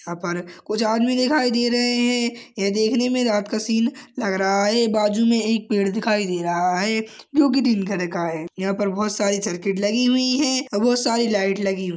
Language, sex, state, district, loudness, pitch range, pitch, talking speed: Hindi, male, Chhattisgarh, Kabirdham, -21 LUFS, 195-240 Hz, 215 Hz, 220 wpm